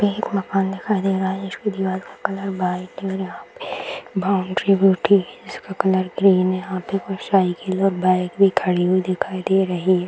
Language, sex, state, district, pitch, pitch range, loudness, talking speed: Hindi, female, Bihar, Bhagalpur, 190 Hz, 185-195 Hz, -20 LUFS, 220 wpm